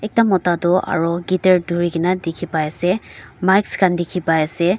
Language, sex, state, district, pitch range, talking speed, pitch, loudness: Nagamese, female, Nagaland, Dimapur, 170-185 Hz, 200 wpm, 180 Hz, -18 LUFS